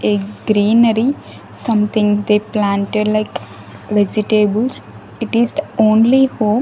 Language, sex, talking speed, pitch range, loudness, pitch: English, female, 110 wpm, 205-230 Hz, -15 LUFS, 215 Hz